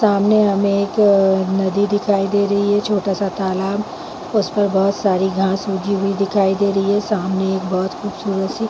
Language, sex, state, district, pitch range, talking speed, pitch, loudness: Hindi, female, Chhattisgarh, Bilaspur, 195-205 Hz, 170 wpm, 200 Hz, -18 LUFS